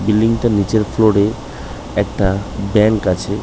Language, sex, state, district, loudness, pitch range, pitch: Bengali, male, West Bengal, North 24 Parganas, -16 LUFS, 100-110 Hz, 105 Hz